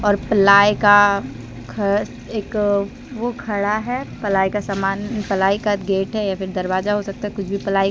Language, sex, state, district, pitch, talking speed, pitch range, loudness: Hindi, female, Jharkhand, Deoghar, 200 Hz, 180 wpm, 195-210 Hz, -19 LUFS